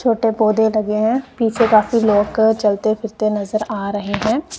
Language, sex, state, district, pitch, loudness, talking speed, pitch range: Hindi, female, Punjab, Kapurthala, 215 Hz, -17 LUFS, 170 wpm, 210-225 Hz